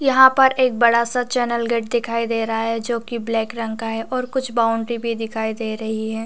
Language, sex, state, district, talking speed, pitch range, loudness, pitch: Hindi, female, Chhattisgarh, Raigarh, 250 wpm, 225-245 Hz, -20 LUFS, 230 Hz